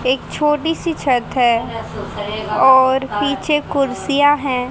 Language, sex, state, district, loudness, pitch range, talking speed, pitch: Hindi, female, Haryana, Rohtak, -17 LUFS, 255-290 Hz, 115 wpm, 270 Hz